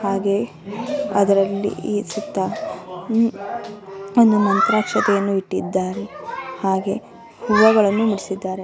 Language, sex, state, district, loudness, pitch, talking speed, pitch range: Kannada, female, Karnataka, Dharwad, -20 LUFS, 200 Hz, 70 wpm, 195-220 Hz